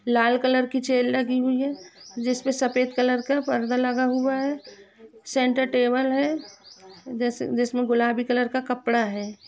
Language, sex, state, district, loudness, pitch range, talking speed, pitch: Hindi, female, Jharkhand, Jamtara, -24 LUFS, 235-260 Hz, 160 wpm, 250 Hz